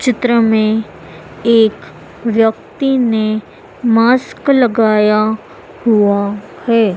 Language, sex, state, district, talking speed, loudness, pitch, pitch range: Hindi, female, Madhya Pradesh, Dhar, 75 wpm, -14 LUFS, 225 Hz, 215-235 Hz